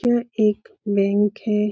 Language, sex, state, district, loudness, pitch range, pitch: Hindi, female, Uttar Pradesh, Etah, -21 LUFS, 205-220 Hz, 210 Hz